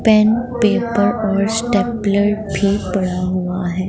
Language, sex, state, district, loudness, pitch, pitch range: Hindi, female, Punjab, Pathankot, -17 LUFS, 205 Hz, 190-220 Hz